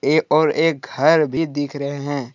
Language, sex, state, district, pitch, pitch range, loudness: Hindi, male, Jharkhand, Deoghar, 145 Hz, 140-155 Hz, -19 LUFS